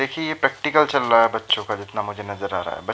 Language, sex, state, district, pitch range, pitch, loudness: Hindi, male, Uttar Pradesh, Jyotiba Phule Nagar, 105-145 Hz, 115 Hz, -21 LUFS